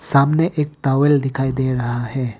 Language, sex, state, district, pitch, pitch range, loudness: Hindi, male, Arunachal Pradesh, Papum Pare, 135 Hz, 130-145 Hz, -18 LUFS